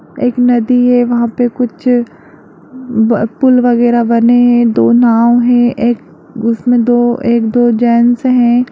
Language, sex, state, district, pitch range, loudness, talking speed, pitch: Hindi, female, Bihar, Darbhanga, 235-245 Hz, -11 LUFS, 140 wpm, 240 Hz